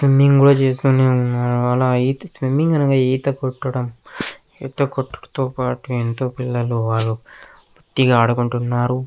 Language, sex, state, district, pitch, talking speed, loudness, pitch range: Telugu, male, Andhra Pradesh, Krishna, 130 Hz, 120 wpm, -18 LUFS, 120-135 Hz